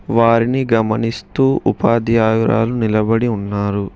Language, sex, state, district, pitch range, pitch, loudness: Telugu, male, Telangana, Hyderabad, 110-115 Hz, 115 Hz, -16 LUFS